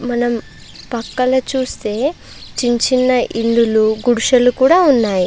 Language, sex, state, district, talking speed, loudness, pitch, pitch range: Telugu, female, Andhra Pradesh, Chittoor, 100 wpm, -15 LUFS, 245 Hz, 230-255 Hz